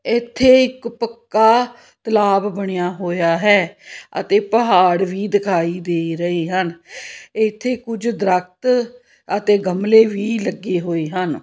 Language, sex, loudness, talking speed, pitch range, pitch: Punjabi, female, -17 LUFS, 120 wpm, 180-230 Hz, 205 Hz